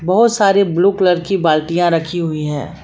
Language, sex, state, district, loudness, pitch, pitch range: Hindi, female, Jharkhand, Palamu, -15 LUFS, 175 Hz, 165-195 Hz